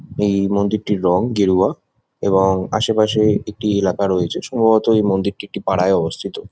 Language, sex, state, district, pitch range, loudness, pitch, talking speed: Bengali, male, West Bengal, Jhargram, 95-110 Hz, -18 LUFS, 100 Hz, 155 wpm